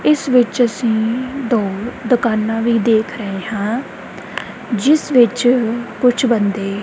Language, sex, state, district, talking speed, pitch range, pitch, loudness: Punjabi, female, Punjab, Kapurthala, 115 wpm, 215-250 Hz, 235 Hz, -16 LUFS